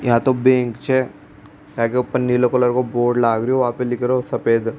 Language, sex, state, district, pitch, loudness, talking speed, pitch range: Rajasthani, male, Rajasthan, Churu, 125 Hz, -18 LUFS, 225 wpm, 120-130 Hz